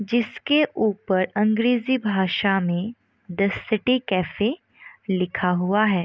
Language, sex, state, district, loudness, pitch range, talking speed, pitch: Hindi, female, Bihar, Gopalganj, -22 LUFS, 185-230 Hz, 110 wpm, 210 Hz